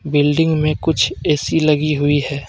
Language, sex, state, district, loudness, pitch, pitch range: Hindi, male, Jharkhand, Deoghar, -16 LUFS, 150 Hz, 145-155 Hz